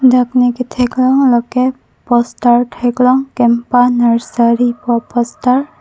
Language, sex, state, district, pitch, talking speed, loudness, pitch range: Karbi, female, Assam, Karbi Anglong, 245 Hz, 115 wpm, -13 LUFS, 240-255 Hz